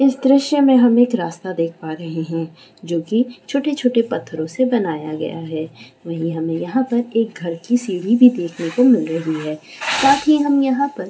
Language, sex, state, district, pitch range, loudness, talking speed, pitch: Hindi, female, West Bengal, Jalpaiguri, 165-250 Hz, -18 LUFS, 200 wpm, 185 Hz